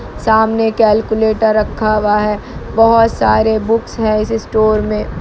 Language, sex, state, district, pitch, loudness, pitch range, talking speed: Hindi, male, Bihar, Kishanganj, 220 Hz, -13 LUFS, 215-225 Hz, 150 wpm